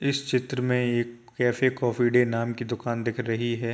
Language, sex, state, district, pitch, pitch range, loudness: Hindi, male, Uttar Pradesh, Jyotiba Phule Nagar, 120 Hz, 120-125 Hz, -26 LUFS